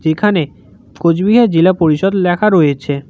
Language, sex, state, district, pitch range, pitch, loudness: Bengali, male, West Bengal, Cooch Behar, 155-195 Hz, 175 Hz, -13 LUFS